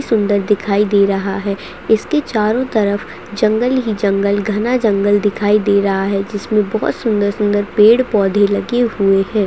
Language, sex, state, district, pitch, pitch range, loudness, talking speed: Hindi, female, Chhattisgarh, Sarguja, 205 Hz, 200-220 Hz, -15 LUFS, 165 wpm